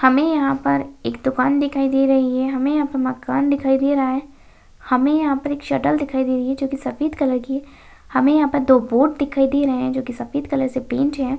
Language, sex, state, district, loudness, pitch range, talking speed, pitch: Hindi, female, Bihar, Saharsa, -19 LUFS, 260-285 Hz, 270 wpm, 270 Hz